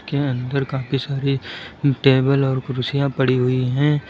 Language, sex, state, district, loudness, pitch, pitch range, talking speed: Hindi, male, Uttar Pradesh, Lucknow, -20 LUFS, 135 Hz, 130-140 Hz, 130 wpm